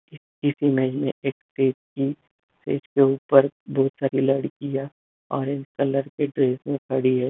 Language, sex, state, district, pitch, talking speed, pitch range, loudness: Hindi, male, Bihar, Jamui, 135 Hz, 155 wpm, 135-140 Hz, -24 LUFS